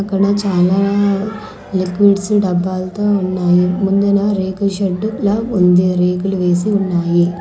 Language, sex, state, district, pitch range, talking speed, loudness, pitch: Telugu, female, Andhra Pradesh, Manyam, 180-200 Hz, 105 wpm, -15 LUFS, 195 Hz